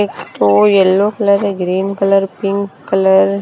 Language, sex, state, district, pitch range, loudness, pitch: Hindi, female, Bihar, Kaimur, 190-200 Hz, -13 LUFS, 195 Hz